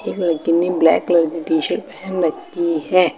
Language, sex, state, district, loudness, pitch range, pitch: Hindi, female, Uttar Pradesh, Lucknow, -18 LUFS, 165-175 Hz, 170 Hz